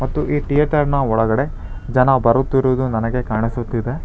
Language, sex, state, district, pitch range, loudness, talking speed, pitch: Kannada, male, Karnataka, Bangalore, 115-135 Hz, -18 LUFS, 105 wpm, 125 Hz